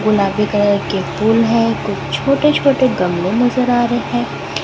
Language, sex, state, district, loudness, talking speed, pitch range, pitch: Hindi, female, Chhattisgarh, Raipur, -15 LUFS, 170 wpm, 195-245 Hz, 220 Hz